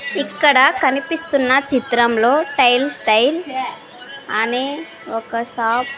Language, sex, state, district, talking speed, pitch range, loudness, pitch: Telugu, female, Andhra Pradesh, Sri Satya Sai, 90 wpm, 235-285 Hz, -17 LUFS, 260 Hz